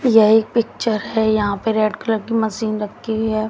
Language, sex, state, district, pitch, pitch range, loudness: Hindi, female, Haryana, Jhajjar, 220 Hz, 215-225 Hz, -18 LUFS